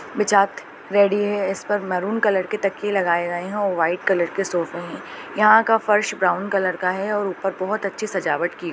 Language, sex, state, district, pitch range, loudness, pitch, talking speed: Hindi, female, Chhattisgarh, Raigarh, 185-205 Hz, -21 LUFS, 195 Hz, 215 wpm